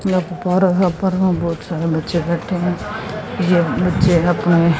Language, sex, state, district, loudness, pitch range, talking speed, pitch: Hindi, female, Haryana, Jhajjar, -18 LUFS, 170-185 Hz, 125 wpm, 175 Hz